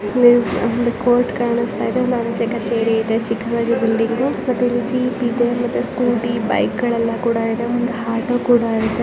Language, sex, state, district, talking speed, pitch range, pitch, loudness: Kannada, female, Karnataka, Chamarajanagar, 140 wpm, 230-245 Hz, 235 Hz, -18 LUFS